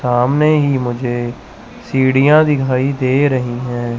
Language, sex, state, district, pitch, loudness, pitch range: Hindi, male, Chandigarh, Chandigarh, 130 Hz, -15 LUFS, 120-145 Hz